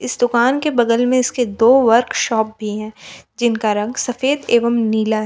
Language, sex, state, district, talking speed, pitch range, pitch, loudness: Hindi, female, Jharkhand, Palamu, 170 wpm, 220-245 Hz, 235 Hz, -16 LUFS